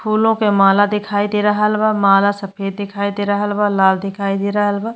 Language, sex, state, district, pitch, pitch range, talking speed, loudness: Bhojpuri, female, Uttar Pradesh, Ghazipur, 205 Hz, 200-210 Hz, 215 wpm, -16 LUFS